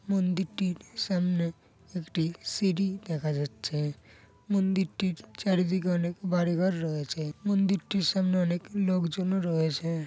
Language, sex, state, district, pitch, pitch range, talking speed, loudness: Bengali, female, West Bengal, Kolkata, 180 Hz, 160-190 Hz, 100 wpm, -29 LUFS